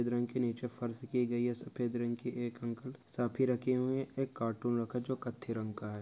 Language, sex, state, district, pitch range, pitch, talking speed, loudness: Hindi, male, Maharashtra, Nagpur, 120-125 Hz, 120 Hz, 250 wpm, -36 LUFS